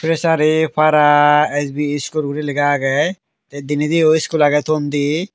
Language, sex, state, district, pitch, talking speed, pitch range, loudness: Chakma, male, Tripura, Dhalai, 150 Hz, 145 wpm, 145-155 Hz, -16 LUFS